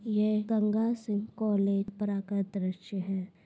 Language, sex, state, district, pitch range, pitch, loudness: Hindi, female, Bihar, Saran, 195-215 Hz, 205 Hz, -31 LUFS